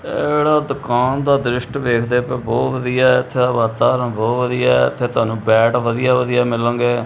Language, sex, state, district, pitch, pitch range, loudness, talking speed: Punjabi, male, Punjab, Kapurthala, 125 Hz, 115-130 Hz, -17 LUFS, 195 wpm